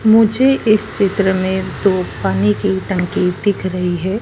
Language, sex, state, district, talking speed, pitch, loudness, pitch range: Hindi, female, Madhya Pradesh, Dhar, 155 wpm, 190 Hz, -16 LUFS, 180-205 Hz